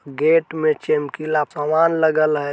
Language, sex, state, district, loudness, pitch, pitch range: Bajjika, male, Bihar, Vaishali, -19 LUFS, 155 Hz, 150-160 Hz